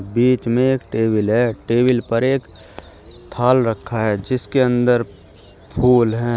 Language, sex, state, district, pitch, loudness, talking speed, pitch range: Hindi, male, Uttar Pradesh, Shamli, 120 Hz, -18 LUFS, 140 wpm, 105-125 Hz